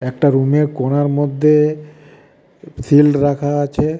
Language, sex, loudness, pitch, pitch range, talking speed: Bengali, male, -15 LUFS, 145 Hz, 140-150 Hz, 105 wpm